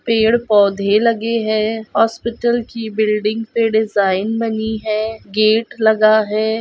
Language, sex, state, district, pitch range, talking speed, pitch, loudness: Hindi, female, Goa, North and South Goa, 215-225 Hz, 125 wpm, 220 Hz, -16 LUFS